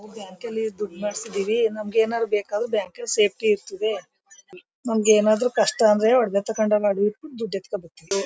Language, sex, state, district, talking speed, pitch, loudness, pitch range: Kannada, female, Karnataka, Mysore, 125 wpm, 215 Hz, -22 LUFS, 205-225 Hz